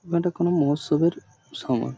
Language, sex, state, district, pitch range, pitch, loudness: Bengali, male, West Bengal, Purulia, 145-170 Hz, 170 Hz, -23 LUFS